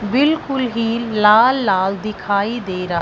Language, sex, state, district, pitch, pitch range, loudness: Hindi, female, Punjab, Fazilka, 215 Hz, 200-250 Hz, -17 LUFS